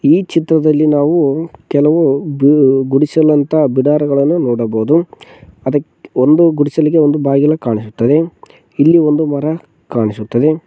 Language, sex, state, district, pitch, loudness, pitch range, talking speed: Kannada, male, Karnataka, Koppal, 150 Hz, -13 LUFS, 135-155 Hz, 100 wpm